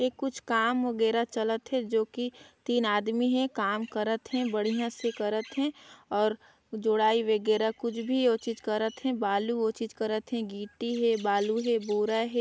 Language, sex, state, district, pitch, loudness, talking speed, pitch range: Chhattisgarhi, female, Chhattisgarh, Sarguja, 225 Hz, -29 LUFS, 190 wpm, 215-240 Hz